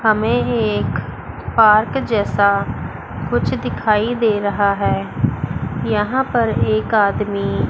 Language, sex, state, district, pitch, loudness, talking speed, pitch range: Hindi, female, Chandigarh, Chandigarh, 210 Hz, -18 LUFS, 110 wpm, 200-225 Hz